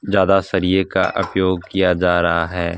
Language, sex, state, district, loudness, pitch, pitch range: Hindi, male, Punjab, Fazilka, -17 LUFS, 95 Hz, 85-95 Hz